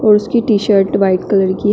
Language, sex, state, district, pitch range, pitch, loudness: Hindi, female, Uttar Pradesh, Shamli, 195-215 Hz, 205 Hz, -13 LUFS